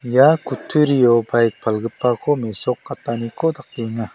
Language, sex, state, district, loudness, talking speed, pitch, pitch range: Garo, male, Meghalaya, South Garo Hills, -19 LUFS, 85 wpm, 120 Hz, 115-145 Hz